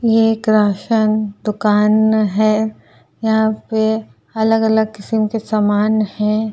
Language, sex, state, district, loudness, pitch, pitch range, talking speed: Hindi, female, Uttar Pradesh, Jyotiba Phule Nagar, -16 LUFS, 215 Hz, 210-220 Hz, 110 wpm